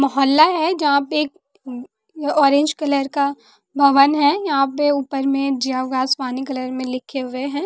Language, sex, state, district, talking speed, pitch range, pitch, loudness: Hindi, female, Bihar, West Champaran, 180 wpm, 265-290 Hz, 275 Hz, -18 LUFS